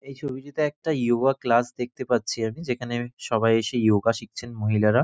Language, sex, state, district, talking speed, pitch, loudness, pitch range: Bengali, male, West Bengal, North 24 Parganas, 180 wpm, 120 Hz, -25 LUFS, 115-130 Hz